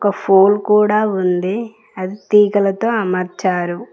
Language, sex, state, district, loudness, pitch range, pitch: Telugu, female, Telangana, Mahabubabad, -15 LUFS, 185-210 Hz, 200 Hz